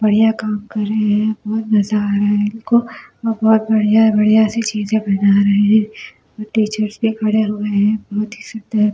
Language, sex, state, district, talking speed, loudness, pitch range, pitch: Hindi, female, Delhi, New Delhi, 190 wpm, -16 LUFS, 210-220 Hz, 215 Hz